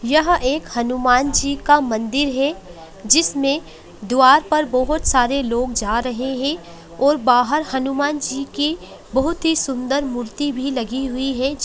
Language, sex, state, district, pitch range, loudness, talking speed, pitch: Hindi, female, Uttarakhand, Uttarkashi, 250-290 Hz, -18 LUFS, 155 wpm, 270 Hz